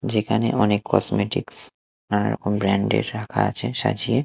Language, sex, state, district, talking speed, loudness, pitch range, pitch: Bengali, male, Odisha, Malkangiri, 140 wpm, -22 LUFS, 105-120 Hz, 105 Hz